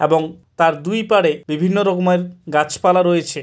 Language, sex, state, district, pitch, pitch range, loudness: Bengali, male, West Bengal, Kolkata, 175 Hz, 155-180 Hz, -17 LUFS